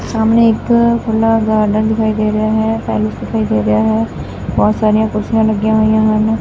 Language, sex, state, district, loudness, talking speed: Punjabi, female, Punjab, Fazilka, -14 LUFS, 180 wpm